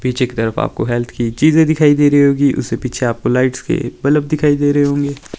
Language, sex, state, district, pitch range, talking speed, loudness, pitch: Hindi, male, Himachal Pradesh, Shimla, 125-145 Hz, 235 wpm, -15 LUFS, 140 Hz